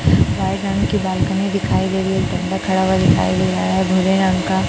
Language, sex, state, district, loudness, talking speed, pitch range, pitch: Hindi, male, Chhattisgarh, Raipur, -17 LUFS, 230 wpm, 185-190 Hz, 190 Hz